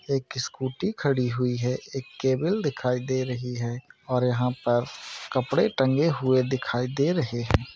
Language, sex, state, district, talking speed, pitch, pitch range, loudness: Hindi, male, Maharashtra, Nagpur, 160 wpm, 130 Hz, 125-135 Hz, -26 LUFS